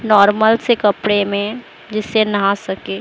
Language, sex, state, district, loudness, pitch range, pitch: Hindi, male, Maharashtra, Mumbai Suburban, -16 LUFS, 200-220 Hz, 210 Hz